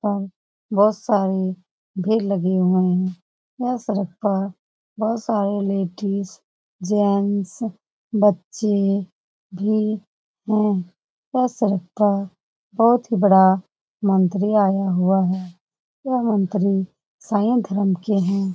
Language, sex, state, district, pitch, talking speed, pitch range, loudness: Hindi, female, Bihar, Lakhisarai, 200 Hz, 95 wpm, 190-215 Hz, -21 LUFS